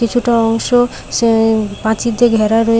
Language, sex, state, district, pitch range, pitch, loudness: Bengali, female, West Bengal, Paschim Medinipur, 220-235 Hz, 230 Hz, -14 LUFS